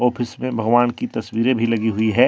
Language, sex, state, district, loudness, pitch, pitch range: Hindi, male, Jharkhand, Deoghar, -20 LUFS, 120 Hz, 115-125 Hz